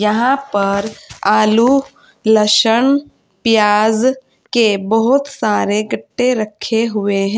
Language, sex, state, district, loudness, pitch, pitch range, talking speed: Hindi, female, Uttar Pradesh, Saharanpur, -15 LUFS, 220 Hz, 210-250 Hz, 100 wpm